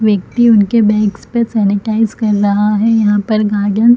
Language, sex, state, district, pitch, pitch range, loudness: Hindi, female, Chhattisgarh, Bilaspur, 215 Hz, 205-225 Hz, -13 LUFS